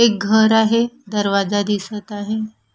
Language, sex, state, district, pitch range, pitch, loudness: Marathi, female, Maharashtra, Washim, 205-220 Hz, 215 Hz, -18 LUFS